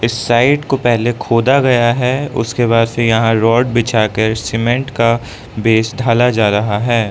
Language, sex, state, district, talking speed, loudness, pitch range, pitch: Hindi, male, Arunachal Pradesh, Lower Dibang Valley, 170 wpm, -14 LUFS, 115-120 Hz, 115 Hz